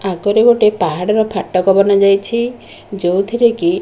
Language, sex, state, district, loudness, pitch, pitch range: Odia, female, Odisha, Khordha, -14 LUFS, 200 Hz, 190-230 Hz